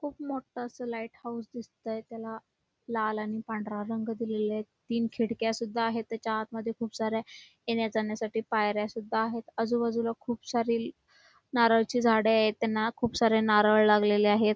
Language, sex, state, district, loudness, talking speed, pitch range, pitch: Marathi, female, Karnataka, Belgaum, -29 LUFS, 155 wpm, 220-230 Hz, 225 Hz